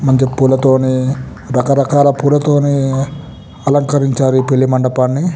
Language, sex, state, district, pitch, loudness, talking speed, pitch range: Telugu, male, Telangana, Nalgonda, 135 Hz, -13 LUFS, 100 wpm, 130-140 Hz